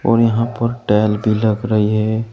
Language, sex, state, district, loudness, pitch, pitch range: Hindi, male, Uttar Pradesh, Saharanpur, -16 LUFS, 110 Hz, 105-115 Hz